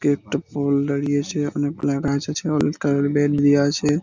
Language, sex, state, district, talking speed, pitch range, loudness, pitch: Bengali, male, West Bengal, Purulia, 165 wpm, 140-145 Hz, -21 LUFS, 145 Hz